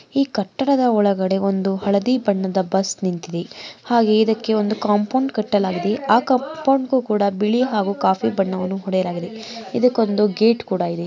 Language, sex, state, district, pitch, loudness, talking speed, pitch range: Kannada, female, Karnataka, Mysore, 210 Hz, -19 LUFS, 130 wpm, 195-230 Hz